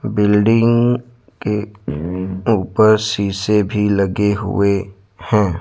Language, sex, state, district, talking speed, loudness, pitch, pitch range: Hindi, male, Rajasthan, Jaipur, 85 wpm, -17 LUFS, 105 Hz, 100-110 Hz